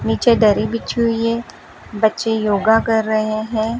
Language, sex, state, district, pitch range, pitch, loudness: Hindi, female, Rajasthan, Bikaner, 215-230 Hz, 220 Hz, -17 LUFS